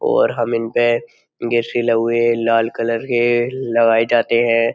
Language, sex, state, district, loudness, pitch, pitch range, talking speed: Hindi, male, Uttar Pradesh, Jyotiba Phule Nagar, -17 LUFS, 115 Hz, 115-120 Hz, 165 wpm